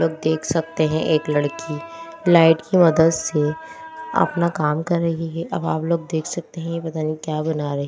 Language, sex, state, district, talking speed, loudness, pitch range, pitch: Hindi, female, Delhi, New Delhi, 200 wpm, -20 LUFS, 155-170 Hz, 165 Hz